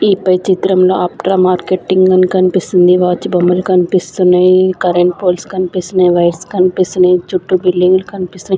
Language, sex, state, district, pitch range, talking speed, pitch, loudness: Telugu, female, Andhra Pradesh, Sri Satya Sai, 180-185 Hz, 125 wpm, 185 Hz, -12 LUFS